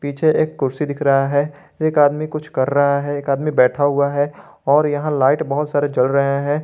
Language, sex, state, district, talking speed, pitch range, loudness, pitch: Hindi, male, Jharkhand, Garhwa, 225 wpm, 140-150 Hz, -18 LUFS, 145 Hz